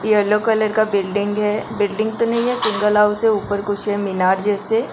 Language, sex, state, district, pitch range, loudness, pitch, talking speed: Hindi, female, Goa, North and South Goa, 205-220 Hz, -17 LUFS, 210 Hz, 220 wpm